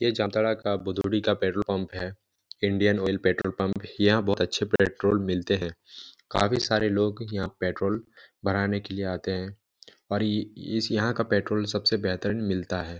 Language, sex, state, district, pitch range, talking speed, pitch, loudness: Hindi, male, Jharkhand, Jamtara, 95-105 Hz, 175 wpm, 100 Hz, -27 LUFS